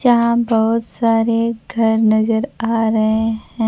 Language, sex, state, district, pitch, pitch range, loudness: Hindi, female, Bihar, Kaimur, 225 Hz, 220-230 Hz, -16 LUFS